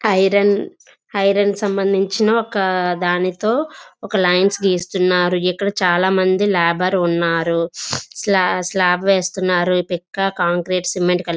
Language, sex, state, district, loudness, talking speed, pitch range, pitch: Telugu, female, Andhra Pradesh, Visakhapatnam, -17 LUFS, 100 wpm, 180-200 Hz, 185 Hz